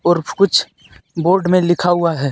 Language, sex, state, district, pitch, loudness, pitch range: Hindi, male, Jharkhand, Deoghar, 175 Hz, -15 LUFS, 165-180 Hz